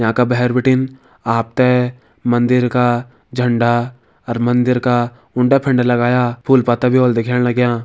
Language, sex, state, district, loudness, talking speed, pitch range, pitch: Hindi, male, Uttarakhand, Tehri Garhwal, -15 LUFS, 155 wpm, 120-125 Hz, 125 Hz